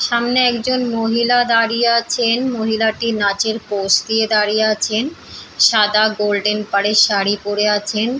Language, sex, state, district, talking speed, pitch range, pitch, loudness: Bengali, female, West Bengal, Paschim Medinipur, 130 wpm, 210-235 Hz, 220 Hz, -16 LUFS